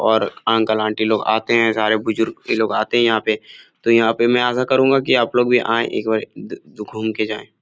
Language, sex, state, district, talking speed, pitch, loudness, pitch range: Hindi, male, Bihar, Jahanabad, 250 wpm, 110 Hz, -18 LUFS, 110-120 Hz